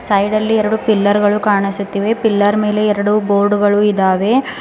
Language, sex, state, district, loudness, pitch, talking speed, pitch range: Kannada, female, Karnataka, Bidar, -14 LUFS, 205 Hz, 145 wpm, 200-215 Hz